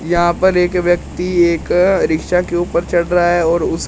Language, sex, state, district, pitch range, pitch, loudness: Hindi, male, Uttar Pradesh, Shamli, 170-180 Hz, 175 Hz, -15 LUFS